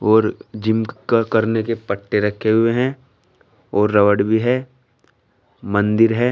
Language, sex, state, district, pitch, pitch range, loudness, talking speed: Hindi, male, Uttar Pradesh, Shamli, 110 Hz, 105-120 Hz, -18 LUFS, 140 wpm